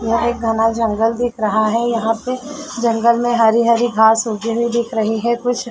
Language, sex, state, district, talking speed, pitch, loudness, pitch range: Hindi, female, Uttar Pradesh, Jalaun, 210 wpm, 235 Hz, -16 LUFS, 225-240 Hz